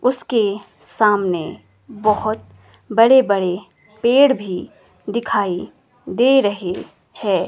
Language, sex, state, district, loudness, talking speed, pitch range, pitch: Hindi, female, Himachal Pradesh, Shimla, -18 LUFS, 90 wpm, 180-230 Hz, 205 Hz